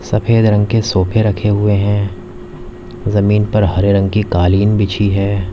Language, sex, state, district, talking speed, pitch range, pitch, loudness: Hindi, male, Uttar Pradesh, Lalitpur, 165 wpm, 100-105 Hz, 105 Hz, -14 LUFS